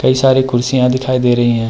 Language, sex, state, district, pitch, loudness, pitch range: Hindi, male, Uttarakhand, Tehri Garhwal, 125 Hz, -13 LUFS, 120-130 Hz